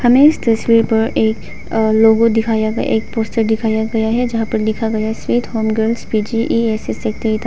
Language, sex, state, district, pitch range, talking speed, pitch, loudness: Hindi, female, Arunachal Pradesh, Papum Pare, 220-230 Hz, 210 wpm, 225 Hz, -16 LUFS